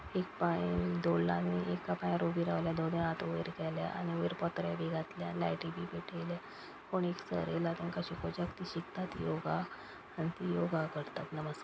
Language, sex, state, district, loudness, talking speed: Konkani, male, Goa, North and South Goa, -37 LUFS, 180 wpm